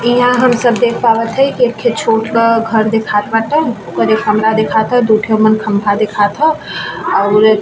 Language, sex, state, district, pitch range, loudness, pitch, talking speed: Bhojpuri, female, Bihar, East Champaran, 215-240 Hz, -12 LUFS, 225 Hz, 195 wpm